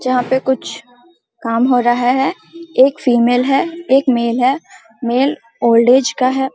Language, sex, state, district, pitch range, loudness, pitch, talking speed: Hindi, female, Bihar, Samastipur, 240-270 Hz, -15 LUFS, 255 Hz, 165 wpm